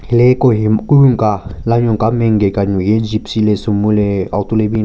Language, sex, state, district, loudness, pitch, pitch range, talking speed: Rengma, male, Nagaland, Kohima, -13 LUFS, 110 Hz, 105-115 Hz, 220 wpm